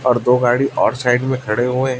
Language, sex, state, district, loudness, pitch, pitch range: Hindi, male, Chhattisgarh, Raipur, -16 LUFS, 125 Hz, 125-130 Hz